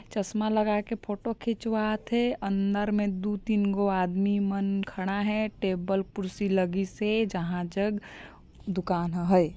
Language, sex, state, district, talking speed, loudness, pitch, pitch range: Chhattisgarhi, female, Chhattisgarh, Sarguja, 145 wpm, -28 LUFS, 200 Hz, 190-210 Hz